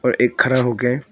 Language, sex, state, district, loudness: Hindi, female, Arunachal Pradesh, Longding, -18 LUFS